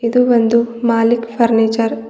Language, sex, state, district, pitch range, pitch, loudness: Kannada, female, Karnataka, Bidar, 225-235 Hz, 230 Hz, -14 LUFS